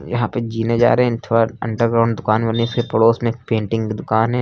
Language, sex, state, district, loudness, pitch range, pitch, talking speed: Hindi, male, Uttar Pradesh, Lucknow, -18 LUFS, 115-120 Hz, 115 Hz, 245 wpm